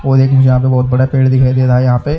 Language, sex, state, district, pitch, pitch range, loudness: Hindi, male, Haryana, Charkhi Dadri, 130 Hz, 125-135 Hz, -11 LUFS